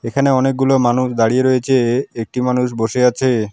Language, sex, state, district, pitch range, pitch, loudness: Bengali, male, West Bengal, Alipurduar, 120-130 Hz, 125 Hz, -16 LUFS